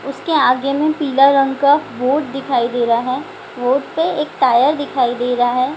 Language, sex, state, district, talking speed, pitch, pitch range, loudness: Hindi, female, Bihar, Gaya, 195 wpm, 270 Hz, 245-290 Hz, -16 LUFS